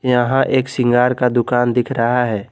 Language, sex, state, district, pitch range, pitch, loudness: Hindi, male, Jharkhand, Garhwa, 120-125 Hz, 125 Hz, -16 LUFS